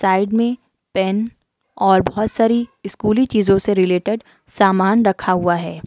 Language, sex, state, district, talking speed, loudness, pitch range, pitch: Hindi, female, Uttar Pradesh, Lucknow, 145 wpm, -17 LUFS, 190-230 Hz, 205 Hz